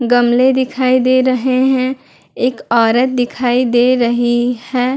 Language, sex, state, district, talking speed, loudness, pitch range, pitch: Hindi, female, Bihar, Madhepura, 135 wpm, -14 LUFS, 245-255 Hz, 250 Hz